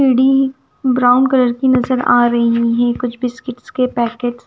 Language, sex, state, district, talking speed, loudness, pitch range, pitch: Hindi, female, Punjab, Kapurthala, 175 wpm, -15 LUFS, 240-260 Hz, 250 Hz